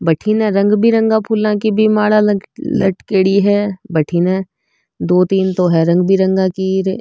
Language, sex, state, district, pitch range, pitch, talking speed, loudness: Marwari, female, Rajasthan, Nagaur, 185-215 Hz, 195 Hz, 145 wpm, -14 LUFS